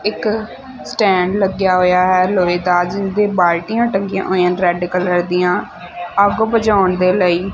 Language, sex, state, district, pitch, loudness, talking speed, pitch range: Punjabi, female, Punjab, Fazilka, 185 Hz, -15 LUFS, 150 wpm, 180-205 Hz